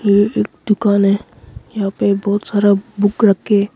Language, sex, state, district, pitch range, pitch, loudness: Hindi, male, Arunachal Pradesh, Longding, 200-205 Hz, 205 Hz, -16 LUFS